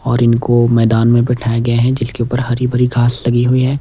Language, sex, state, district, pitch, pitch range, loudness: Hindi, male, Himachal Pradesh, Shimla, 120 Hz, 120-125 Hz, -14 LUFS